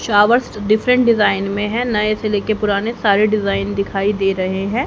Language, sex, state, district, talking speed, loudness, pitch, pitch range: Hindi, female, Haryana, Jhajjar, 195 wpm, -16 LUFS, 210 Hz, 200-220 Hz